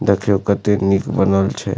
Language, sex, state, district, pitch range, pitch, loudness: Maithili, male, Bihar, Supaul, 95-100 Hz, 100 Hz, -17 LUFS